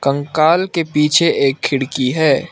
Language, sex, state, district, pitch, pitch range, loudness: Hindi, male, Arunachal Pradesh, Lower Dibang Valley, 150 Hz, 140-165 Hz, -15 LUFS